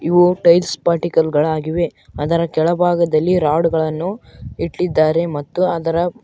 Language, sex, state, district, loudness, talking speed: Kannada, male, Karnataka, Koppal, -17 LUFS, 115 wpm